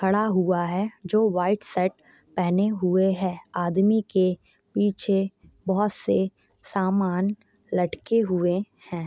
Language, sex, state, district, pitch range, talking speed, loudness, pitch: Hindi, female, Chhattisgarh, Jashpur, 180-205 Hz, 120 wpm, -25 LUFS, 190 Hz